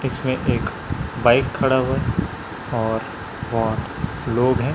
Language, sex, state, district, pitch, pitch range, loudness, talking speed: Hindi, male, Chhattisgarh, Raipur, 125 Hz, 115-130 Hz, -22 LUFS, 115 wpm